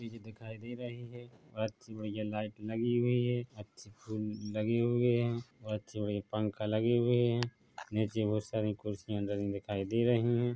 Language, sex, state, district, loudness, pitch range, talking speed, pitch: Hindi, male, Chhattisgarh, Bilaspur, -34 LUFS, 105-120 Hz, 200 wpm, 110 Hz